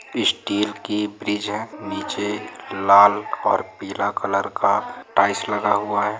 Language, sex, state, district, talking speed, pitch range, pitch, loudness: Hindi, male, Jharkhand, Sahebganj, 145 wpm, 100-105 Hz, 105 Hz, -21 LUFS